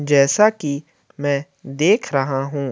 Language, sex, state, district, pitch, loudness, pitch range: Hindi, male, Uttar Pradesh, Jalaun, 140 Hz, -19 LUFS, 140-150 Hz